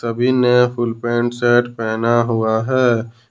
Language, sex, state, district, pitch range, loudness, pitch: Hindi, male, Jharkhand, Ranchi, 115-120 Hz, -17 LUFS, 120 Hz